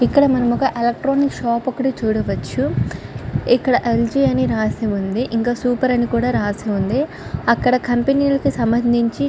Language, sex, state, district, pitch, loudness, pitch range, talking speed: Telugu, female, Andhra Pradesh, Chittoor, 240 Hz, -18 LUFS, 220-260 Hz, 135 wpm